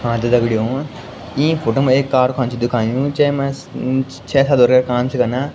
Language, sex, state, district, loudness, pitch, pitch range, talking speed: Garhwali, male, Uttarakhand, Tehri Garhwal, -17 LUFS, 130 Hz, 120-135 Hz, 160 wpm